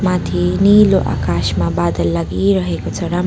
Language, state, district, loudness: Nepali, West Bengal, Darjeeling, -15 LUFS